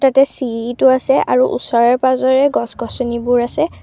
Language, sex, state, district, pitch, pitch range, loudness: Assamese, female, Assam, Kamrup Metropolitan, 255 Hz, 235-270 Hz, -15 LUFS